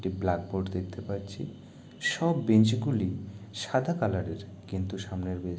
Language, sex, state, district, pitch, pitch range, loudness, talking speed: Bengali, male, West Bengal, Jalpaiguri, 100 Hz, 95-110 Hz, -30 LUFS, 150 wpm